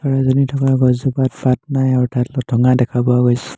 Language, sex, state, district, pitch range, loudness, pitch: Assamese, male, Assam, Hailakandi, 125-135 Hz, -16 LUFS, 130 Hz